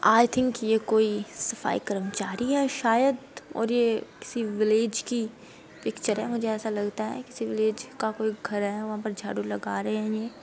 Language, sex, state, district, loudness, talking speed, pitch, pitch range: Bhojpuri, female, Uttar Pradesh, Deoria, -27 LUFS, 190 wpm, 220 Hz, 215-235 Hz